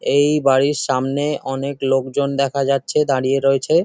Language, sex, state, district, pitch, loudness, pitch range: Bengali, male, West Bengal, Jhargram, 140 Hz, -18 LUFS, 135-145 Hz